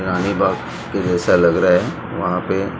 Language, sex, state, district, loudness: Hindi, male, Maharashtra, Mumbai Suburban, -18 LUFS